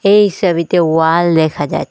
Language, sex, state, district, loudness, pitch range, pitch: Bengali, female, Assam, Hailakandi, -13 LUFS, 160-180 Hz, 170 Hz